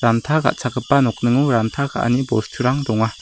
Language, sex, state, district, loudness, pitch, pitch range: Garo, male, Meghalaya, West Garo Hills, -19 LUFS, 125 Hz, 115-140 Hz